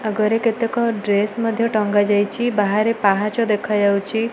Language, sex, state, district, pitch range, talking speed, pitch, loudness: Odia, female, Odisha, Malkangiri, 205-230 Hz, 125 wpm, 215 Hz, -19 LUFS